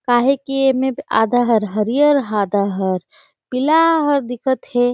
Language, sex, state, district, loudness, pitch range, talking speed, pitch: Surgujia, female, Chhattisgarh, Sarguja, -17 LUFS, 220-275 Hz, 160 wpm, 245 Hz